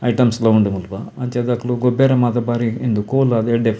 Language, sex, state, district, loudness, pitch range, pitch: Tulu, male, Karnataka, Dakshina Kannada, -17 LUFS, 115-125 Hz, 120 Hz